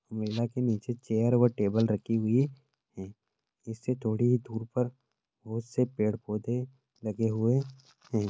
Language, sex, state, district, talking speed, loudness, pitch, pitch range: Hindi, male, Maharashtra, Sindhudurg, 145 wpm, -30 LUFS, 115 Hz, 110-125 Hz